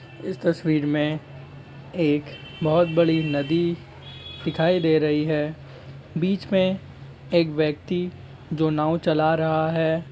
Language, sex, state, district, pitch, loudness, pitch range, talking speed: Hindi, male, Jharkhand, Jamtara, 155 Hz, -23 LUFS, 145-170 Hz, 120 wpm